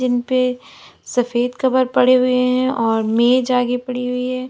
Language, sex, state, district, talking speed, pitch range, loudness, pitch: Hindi, female, Uttar Pradesh, Lalitpur, 175 wpm, 245-255 Hz, -17 LUFS, 250 Hz